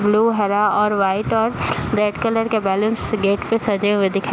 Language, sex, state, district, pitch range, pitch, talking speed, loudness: Hindi, female, Bihar, Saharsa, 200-220 Hz, 210 Hz, 210 wpm, -19 LUFS